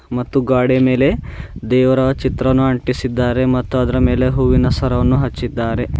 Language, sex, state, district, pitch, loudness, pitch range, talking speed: Kannada, male, Karnataka, Bidar, 125 Hz, -16 LUFS, 125-130 Hz, 120 wpm